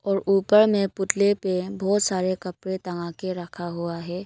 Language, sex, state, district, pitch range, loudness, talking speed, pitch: Hindi, female, Arunachal Pradesh, Longding, 180-195 Hz, -24 LUFS, 185 wpm, 190 Hz